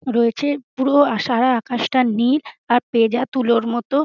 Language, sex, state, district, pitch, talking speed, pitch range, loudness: Bengali, female, West Bengal, Dakshin Dinajpur, 245 Hz, 150 wpm, 235-270 Hz, -18 LUFS